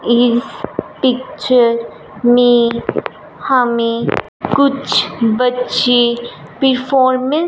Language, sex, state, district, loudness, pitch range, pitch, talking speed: Hindi, male, Punjab, Fazilka, -14 LUFS, 235-260 Hz, 245 Hz, 65 wpm